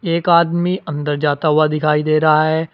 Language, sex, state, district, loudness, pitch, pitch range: Hindi, male, Uttar Pradesh, Saharanpur, -16 LUFS, 155 Hz, 150-170 Hz